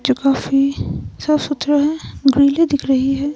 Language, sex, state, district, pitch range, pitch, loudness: Hindi, female, Himachal Pradesh, Shimla, 275-295 Hz, 280 Hz, -17 LUFS